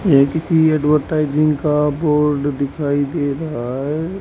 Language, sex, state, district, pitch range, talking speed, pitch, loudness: Hindi, male, Haryana, Rohtak, 145-155 Hz, 130 wpm, 150 Hz, -17 LUFS